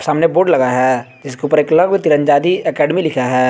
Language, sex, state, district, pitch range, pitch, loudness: Hindi, male, Jharkhand, Garhwa, 130-165 Hz, 150 Hz, -14 LUFS